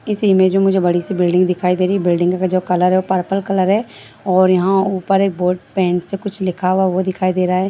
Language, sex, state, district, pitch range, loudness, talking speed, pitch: Hindi, female, Bihar, Purnia, 180-195 Hz, -16 LUFS, 255 wpm, 185 Hz